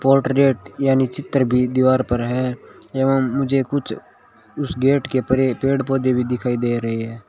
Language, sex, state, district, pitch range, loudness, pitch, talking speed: Hindi, male, Rajasthan, Bikaner, 125-135 Hz, -19 LUFS, 130 Hz, 175 wpm